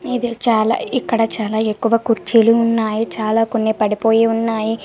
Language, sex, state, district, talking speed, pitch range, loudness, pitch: Telugu, female, Telangana, Karimnagar, 135 wpm, 220-230 Hz, -17 LUFS, 225 Hz